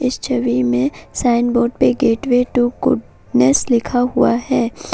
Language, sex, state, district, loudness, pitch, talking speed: Hindi, female, Assam, Kamrup Metropolitan, -16 LUFS, 240 Hz, 145 wpm